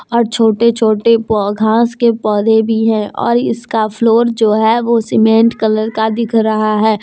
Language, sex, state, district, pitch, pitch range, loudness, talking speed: Hindi, female, Jharkhand, Deoghar, 225 Hz, 220-230 Hz, -13 LUFS, 170 wpm